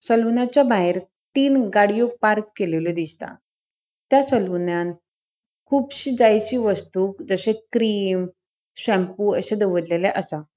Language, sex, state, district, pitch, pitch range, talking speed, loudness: Konkani, female, Goa, North and South Goa, 205 Hz, 180-235 Hz, 100 wpm, -21 LUFS